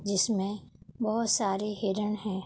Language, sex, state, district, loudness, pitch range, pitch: Hindi, female, Uttar Pradesh, Budaun, -29 LUFS, 195-215 Hz, 210 Hz